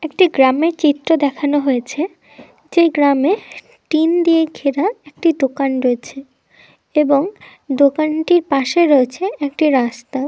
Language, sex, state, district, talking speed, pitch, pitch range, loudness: Bengali, female, West Bengal, Dakshin Dinajpur, 110 wpm, 295 Hz, 275-330 Hz, -16 LUFS